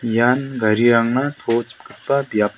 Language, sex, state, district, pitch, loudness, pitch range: Garo, male, Meghalaya, South Garo Hills, 120 Hz, -18 LUFS, 115-130 Hz